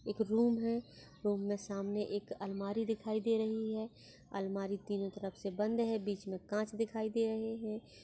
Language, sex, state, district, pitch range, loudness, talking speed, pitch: Hindi, female, Maharashtra, Chandrapur, 200-220 Hz, -37 LUFS, 185 wpm, 215 Hz